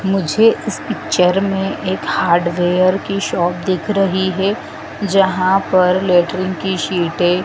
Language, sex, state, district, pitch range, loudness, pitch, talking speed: Hindi, female, Madhya Pradesh, Dhar, 180-195 Hz, -16 LUFS, 185 Hz, 135 wpm